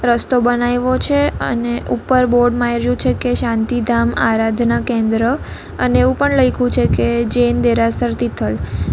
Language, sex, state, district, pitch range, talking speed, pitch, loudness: Gujarati, female, Gujarat, Valsad, 235-245 Hz, 140 wpm, 240 Hz, -16 LUFS